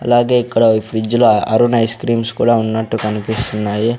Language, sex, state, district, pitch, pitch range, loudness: Telugu, male, Andhra Pradesh, Sri Satya Sai, 115 Hz, 110-120 Hz, -15 LUFS